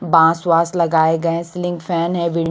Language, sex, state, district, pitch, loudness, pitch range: Hindi, female, Punjab, Kapurthala, 170 Hz, -17 LUFS, 165-175 Hz